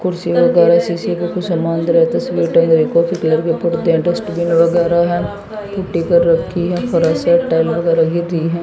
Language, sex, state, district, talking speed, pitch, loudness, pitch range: Hindi, female, Haryana, Jhajjar, 190 wpm, 170 Hz, -15 LUFS, 165-175 Hz